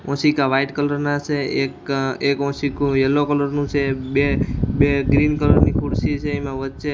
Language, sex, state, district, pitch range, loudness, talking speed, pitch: Gujarati, male, Gujarat, Gandhinagar, 135-145 Hz, -20 LUFS, 190 wpm, 140 Hz